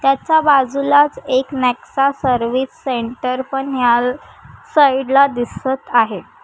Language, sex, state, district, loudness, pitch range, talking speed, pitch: Marathi, female, Maharashtra, Chandrapur, -16 LUFS, 250-280 Hz, 110 wpm, 265 Hz